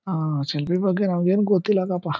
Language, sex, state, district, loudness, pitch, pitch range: Kannada, male, Karnataka, Chamarajanagar, -22 LUFS, 180 Hz, 160-195 Hz